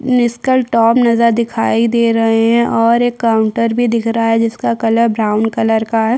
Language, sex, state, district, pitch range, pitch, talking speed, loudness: Hindi, female, Chhattisgarh, Korba, 225-235 Hz, 230 Hz, 205 wpm, -13 LUFS